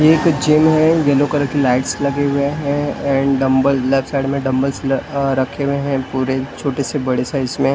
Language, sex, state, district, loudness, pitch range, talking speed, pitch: Hindi, male, Maharashtra, Mumbai Suburban, -17 LUFS, 135-145 Hz, 225 wpm, 140 Hz